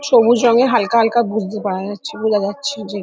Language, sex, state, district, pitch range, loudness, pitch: Bengali, female, West Bengal, Dakshin Dinajpur, 205-235 Hz, -16 LUFS, 220 Hz